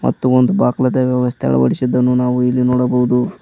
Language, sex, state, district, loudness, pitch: Kannada, male, Karnataka, Koppal, -15 LUFS, 125 Hz